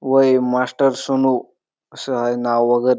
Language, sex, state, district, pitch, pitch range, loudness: Marathi, male, Maharashtra, Dhule, 125 Hz, 120-135 Hz, -18 LUFS